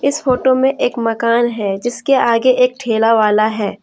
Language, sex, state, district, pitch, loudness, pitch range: Hindi, female, Jharkhand, Deoghar, 235 Hz, -15 LUFS, 220-255 Hz